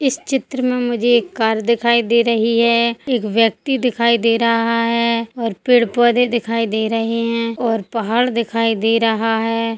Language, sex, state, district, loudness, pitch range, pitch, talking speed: Hindi, female, Chhattisgarh, Sukma, -17 LUFS, 225-240 Hz, 230 Hz, 180 wpm